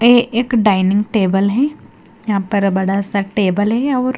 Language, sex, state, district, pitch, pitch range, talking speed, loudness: Hindi, female, Himachal Pradesh, Shimla, 205 Hz, 195-240 Hz, 175 wpm, -16 LUFS